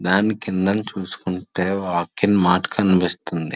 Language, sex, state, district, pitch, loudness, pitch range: Telugu, male, Andhra Pradesh, Srikakulam, 95 Hz, -21 LUFS, 90-100 Hz